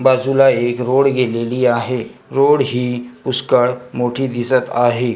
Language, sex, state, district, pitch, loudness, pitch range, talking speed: Marathi, male, Maharashtra, Gondia, 125 Hz, -16 LUFS, 120-130 Hz, 130 wpm